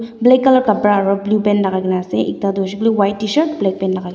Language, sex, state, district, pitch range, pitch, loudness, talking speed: Nagamese, female, Nagaland, Dimapur, 195-225 Hz, 205 Hz, -15 LUFS, 245 wpm